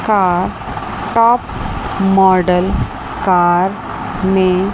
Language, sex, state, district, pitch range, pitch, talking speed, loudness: Hindi, female, Chandigarh, Chandigarh, 180-195 Hz, 190 Hz, 65 wpm, -15 LUFS